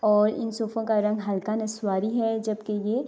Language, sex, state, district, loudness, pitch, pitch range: Urdu, female, Andhra Pradesh, Anantapur, -26 LUFS, 215 Hz, 210-225 Hz